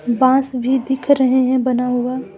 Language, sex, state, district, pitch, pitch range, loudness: Hindi, female, Jharkhand, Deoghar, 255 Hz, 250-265 Hz, -16 LUFS